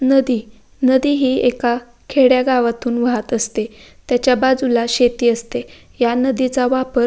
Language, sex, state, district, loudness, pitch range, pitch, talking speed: Marathi, female, Maharashtra, Pune, -17 LUFS, 235-260 Hz, 245 Hz, 110 wpm